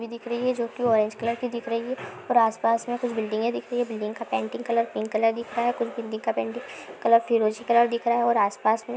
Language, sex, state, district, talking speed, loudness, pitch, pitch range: Hindi, female, Uttarakhand, Tehri Garhwal, 290 wpm, -25 LUFS, 230 Hz, 220-235 Hz